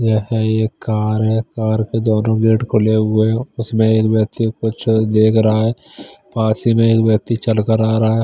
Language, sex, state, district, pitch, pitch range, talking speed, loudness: Hindi, male, Chandigarh, Chandigarh, 110 Hz, 110-115 Hz, 195 wpm, -16 LUFS